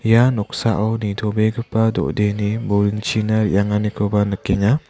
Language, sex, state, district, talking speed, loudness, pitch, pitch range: Garo, male, Meghalaya, West Garo Hills, 85 wpm, -19 LUFS, 105 Hz, 105-110 Hz